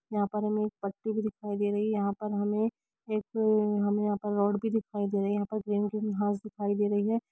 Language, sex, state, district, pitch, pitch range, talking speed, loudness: Hindi, female, Bihar, Gopalganj, 210 Hz, 205-215 Hz, 260 wpm, -30 LUFS